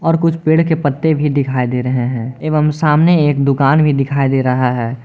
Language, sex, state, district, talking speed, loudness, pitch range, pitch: Hindi, male, Jharkhand, Garhwa, 225 wpm, -14 LUFS, 130-155 Hz, 140 Hz